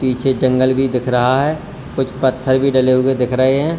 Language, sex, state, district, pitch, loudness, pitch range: Hindi, male, Uttar Pradesh, Lalitpur, 130 Hz, -15 LUFS, 130-135 Hz